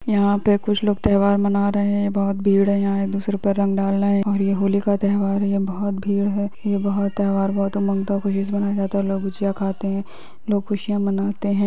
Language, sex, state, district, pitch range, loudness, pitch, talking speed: Hindi, female, Bihar, Lakhisarai, 195-200 Hz, -21 LUFS, 200 Hz, 225 wpm